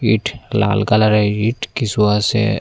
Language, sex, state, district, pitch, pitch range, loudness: Bengali, male, Tripura, Unakoti, 110 Hz, 105-115 Hz, -16 LUFS